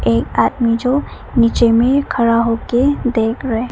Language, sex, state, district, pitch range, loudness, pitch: Hindi, female, Arunachal Pradesh, Papum Pare, 230-250 Hz, -15 LUFS, 235 Hz